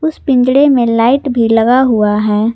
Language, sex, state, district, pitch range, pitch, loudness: Hindi, female, Jharkhand, Garhwa, 225-265 Hz, 245 Hz, -11 LUFS